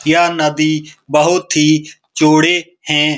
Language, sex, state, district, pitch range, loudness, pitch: Hindi, male, Bihar, Supaul, 150-165 Hz, -13 LUFS, 155 Hz